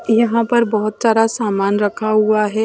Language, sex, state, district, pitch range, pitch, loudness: Hindi, female, Maharashtra, Washim, 210-230 Hz, 215 Hz, -16 LUFS